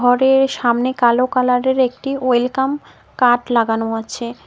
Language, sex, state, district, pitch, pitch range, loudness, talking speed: Bengali, female, West Bengal, Cooch Behar, 250 Hz, 240-260 Hz, -16 LUFS, 120 wpm